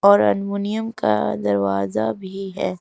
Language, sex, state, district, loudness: Hindi, female, Jharkhand, Garhwa, -21 LUFS